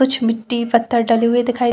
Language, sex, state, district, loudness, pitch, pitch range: Hindi, female, Chhattisgarh, Bastar, -17 LUFS, 235 Hz, 230-245 Hz